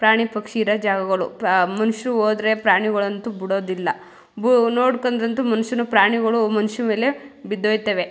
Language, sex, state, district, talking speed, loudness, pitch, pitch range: Kannada, female, Karnataka, Mysore, 125 wpm, -20 LUFS, 220 Hz, 205-230 Hz